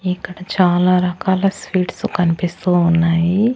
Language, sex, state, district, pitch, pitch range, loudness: Telugu, female, Andhra Pradesh, Annamaya, 180 Hz, 175-190 Hz, -17 LUFS